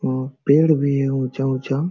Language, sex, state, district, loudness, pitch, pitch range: Hindi, male, Jharkhand, Sahebganj, -19 LUFS, 135 Hz, 130-140 Hz